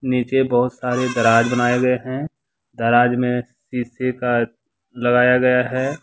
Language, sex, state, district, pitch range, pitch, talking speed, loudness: Hindi, male, Jharkhand, Deoghar, 120-125 Hz, 125 Hz, 140 wpm, -19 LUFS